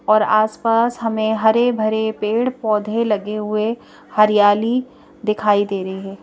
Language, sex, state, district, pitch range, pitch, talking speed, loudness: Hindi, female, Madhya Pradesh, Bhopal, 210-230 Hz, 215 Hz, 145 wpm, -18 LUFS